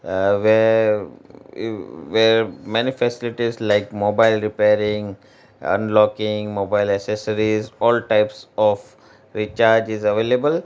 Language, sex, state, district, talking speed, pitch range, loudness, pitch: English, male, Gujarat, Valsad, 100 wpm, 105-115 Hz, -19 LUFS, 105 Hz